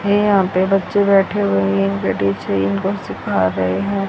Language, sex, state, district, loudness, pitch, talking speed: Hindi, female, Haryana, Rohtak, -17 LUFS, 180 Hz, 190 wpm